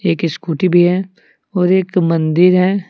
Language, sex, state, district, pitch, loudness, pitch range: Hindi, male, Jharkhand, Deoghar, 180 Hz, -14 LUFS, 170-185 Hz